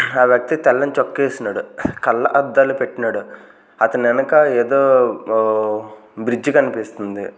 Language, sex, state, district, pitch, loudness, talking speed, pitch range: Telugu, male, Andhra Pradesh, Manyam, 125 Hz, -17 LUFS, 105 wpm, 110-140 Hz